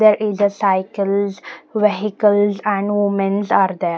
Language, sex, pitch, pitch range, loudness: English, female, 205 Hz, 195-210 Hz, -18 LUFS